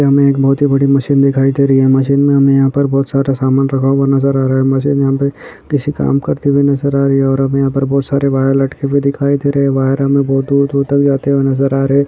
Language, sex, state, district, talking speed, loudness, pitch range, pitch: Hindi, male, Chhattisgarh, Bastar, 300 wpm, -13 LUFS, 135-140 Hz, 140 Hz